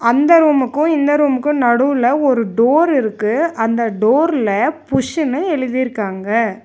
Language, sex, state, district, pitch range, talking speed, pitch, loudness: Tamil, female, Tamil Nadu, Nilgiris, 230-295 Hz, 110 wpm, 260 Hz, -15 LUFS